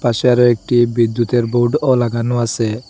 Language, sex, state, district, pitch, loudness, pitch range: Bengali, male, Assam, Hailakandi, 120 Hz, -15 LUFS, 115-120 Hz